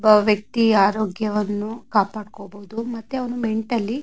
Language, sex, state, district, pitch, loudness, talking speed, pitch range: Kannada, female, Karnataka, Mysore, 215 Hz, -21 LUFS, 120 wpm, 210-230 Hz